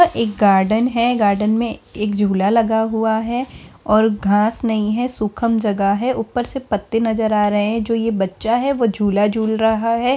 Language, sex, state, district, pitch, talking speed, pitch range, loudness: Hindi, female, Bihar, Darbhanga, 220 Hz, 195 wpm, 210-230 Hz, -18 LUFS